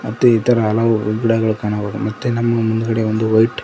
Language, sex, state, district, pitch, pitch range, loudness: Kannada, male, Karnataka, Koppal, 110 Hz, 110-115 Hz, -17 LUFS